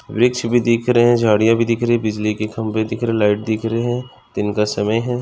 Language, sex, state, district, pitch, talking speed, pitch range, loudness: Hindi, male, Maharashtra, Nagpur, 115 Hz, 265 wpm, 110-120 Hz, -18 LUFS